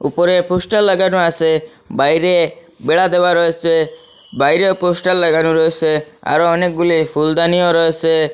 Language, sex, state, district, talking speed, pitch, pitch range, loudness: Bengali, male, Assam, Hailakandi, 115 wpm, 170 Hz, 160-180 Hz, -14 LUFS